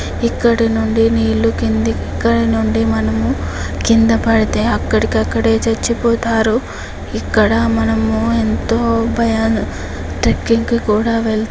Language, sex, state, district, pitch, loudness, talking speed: Telugu, female, Andhra Pradesh, Chittoor, 225 Hz, -15 LUFS, 90 wpm